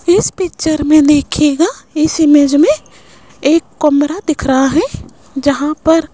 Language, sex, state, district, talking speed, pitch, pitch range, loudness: Hindi, female, Rajasthan, Jaipur, 145 wpm, 305 Hz, 290-320 Hz, -12 LUFS